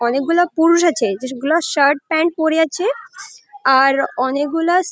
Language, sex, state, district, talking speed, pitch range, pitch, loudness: Bengali, female, West Bengal, Jalpaiguri, 120 wpm, 275-340 Hz, 320 Hz, -16 LUFS